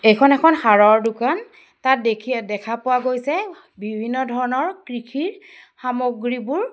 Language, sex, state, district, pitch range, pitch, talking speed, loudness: Assamese, female, Assam, Sonitpur, 230-305 Hz, 250 Hz, 115 wpm, -19 LUFS